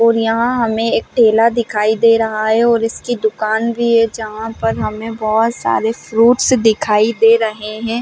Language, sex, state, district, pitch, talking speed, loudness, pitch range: Hindi, female, Chhattisgarh, Bilaspur, 225 Hz, 180 wpm, -15 LUFS, 220-230 Hz